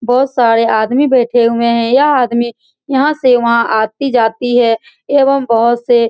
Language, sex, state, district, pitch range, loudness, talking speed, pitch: Hindi, female, Bihar, Saran, 230-260 Hz, -12 LUFS, 165 wpm, 240 Hz